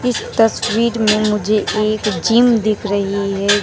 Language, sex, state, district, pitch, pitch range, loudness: Hindi, female, West Bengal, Alipurduar, 215 Hz, 205-225 Hz, -16 LUFS